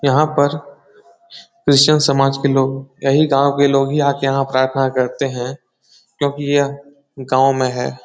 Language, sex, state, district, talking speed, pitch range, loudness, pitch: Hindi, male, Bihar, Jahanabad, 165 wpm, 135-145 Hz, -16 LUFS, 140 Hz